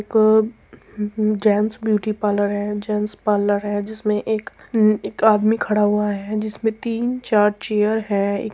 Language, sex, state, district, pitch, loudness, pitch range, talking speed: Hindi, female, Uttar Pradesh, Muzaffarnagar, 210 Hz, -20 LUFS, 205-220 Hz, 155 wpm